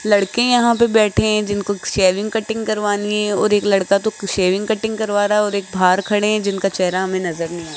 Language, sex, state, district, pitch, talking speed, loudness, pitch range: Hindi, female, Rajasthan, Jaipur, 205 Hz, 245 wpm, -17 LUFS, 195-215 Hz